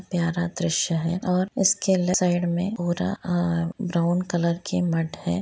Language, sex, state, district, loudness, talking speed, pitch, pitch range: Hindi, female, Jharkhand, Jamtara, -24 LUFS, 155 wpm, 175 Hz, 170-185 Hz